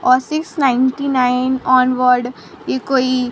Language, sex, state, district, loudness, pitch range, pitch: Hindi, female, Jharkhand, Sahebganj, -16 LUFS, 250-265 Hz, 255 Hz